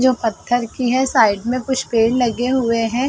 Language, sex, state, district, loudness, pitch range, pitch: Hindi, female, Uttar Pradesh, Jalaun, -18 LUFS, 230-260 Hz, 245 Hz